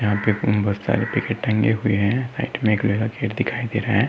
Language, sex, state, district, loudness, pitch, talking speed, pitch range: Hindi, male, Uttar Pradesh, Muzaffarnagar, -21 LUFS, 110 Hz, 160 wpm, 105-115 Hz